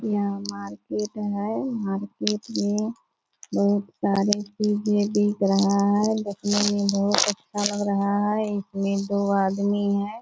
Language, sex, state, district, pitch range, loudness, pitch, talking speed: Hindi, female, Bihar, Purnia, 200-210 Hz, -24 LUFS, 205 Hz, 130 wpm